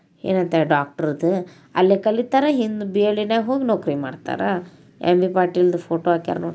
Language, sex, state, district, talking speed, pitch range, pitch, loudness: Kannada, female, Karnataka, Bijapur, 135 wpm, 165-210 Hz, 180 Hz, -20 LUFS